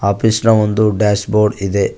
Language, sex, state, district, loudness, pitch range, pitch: Kannada, male, Karnataka, Koppal, -14 LUFS, 100-110 Hz, 105 Hz